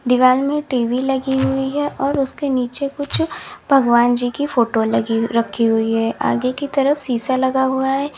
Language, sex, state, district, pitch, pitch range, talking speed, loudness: Hindi, female, Uttar Pradesh, Lalitpur, 260 Hz, 240-275 Hz, 185 wpm, -18 LUFS